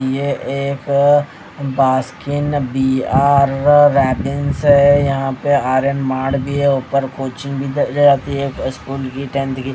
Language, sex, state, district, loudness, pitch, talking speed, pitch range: Hindi, male, Haryana, Rohtak, -16 LUFS, 140 Hz, 135 wpm, 135-140 Hz